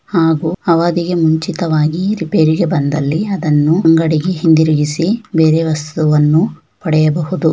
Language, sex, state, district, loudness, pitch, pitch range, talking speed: Kannada, female, Karnataka, Shimoga, -14 LUFS, 160 Hz, 155-175 Hz, 90 wpm